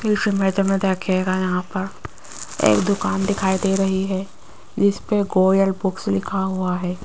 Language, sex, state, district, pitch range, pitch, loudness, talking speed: Hindi, female, Rajasthan, Jaipur, 185-200 Hz, 190 Hz, -20 LUFS, 155 wpm